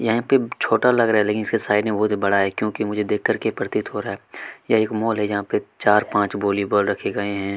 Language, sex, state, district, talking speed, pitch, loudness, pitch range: Hindi, male, Chhattisgarh, Kabirdham, 270 wpm, 105 Hz, -21 LUFS, 100-110 Hz